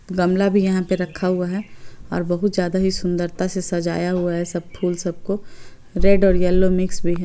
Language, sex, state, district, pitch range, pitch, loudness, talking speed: Hindi, female, Bihar, Gopalganj, 175-190 Hz, 180 Hz, -21 LUFS, 205 wpm